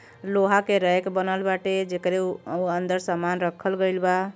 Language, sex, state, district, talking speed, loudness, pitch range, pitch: Bhojpuri, male, Uttar Pradesh, Deoria, 165 wpm, -24 LUFS, 180-190 Hz, 185 Hz